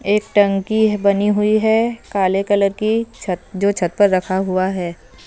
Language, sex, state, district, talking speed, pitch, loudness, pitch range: Hindi, female, Punjab, Fazilka, 170 wpm, 200 Hz, -17 LUFS, 185-210 Hz